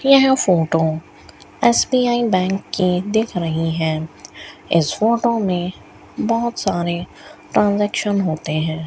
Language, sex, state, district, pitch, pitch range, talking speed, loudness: Hindi, female, Rajasthan, Bikaner, 185 Hz, 165-230 Hz, 110 wpm, -18 LUFS